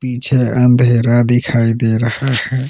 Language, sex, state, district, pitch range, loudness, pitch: Hindi, male, Jharkhand, Palamu, 115-130 Hz, -13 LUFS, 125 Hz